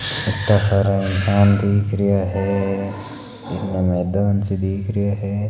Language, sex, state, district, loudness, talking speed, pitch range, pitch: Marwari, male, Rajasthan, Nagaur, -19 LUFS, 130 wpm, 95-100 Hz, 100 Hz